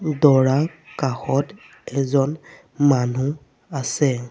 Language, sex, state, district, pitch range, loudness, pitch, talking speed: Assamese, male, Assam, Sonitpur, 130-145 Hz, -21 LUFS, 135 Hz, 70 wpm